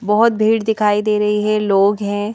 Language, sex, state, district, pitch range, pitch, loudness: Hindi, female, Madhya Pradesh, Bhopal, 205-215 Hz, 210 Hz, -16 LUFS